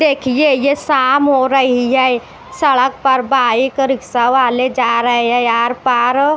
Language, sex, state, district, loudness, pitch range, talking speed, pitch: Hindi, female, Bihar, West Champaran, -13 LUFS, 245-275 Hz, 150 wpm, 260 Hz